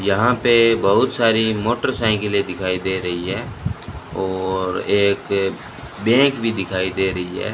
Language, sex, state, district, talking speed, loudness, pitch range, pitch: Hindi, male, Rajasthan, Bikaner, 135 wpm, -19 LUFS, 95-115 Hz, 100 Hz